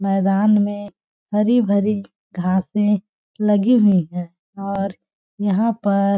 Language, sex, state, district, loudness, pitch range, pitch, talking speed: Hindi, female, Chhattisgarh, Balrampur, -19 LUFS, 195-210 Hz, 200 Hz, 115 wpm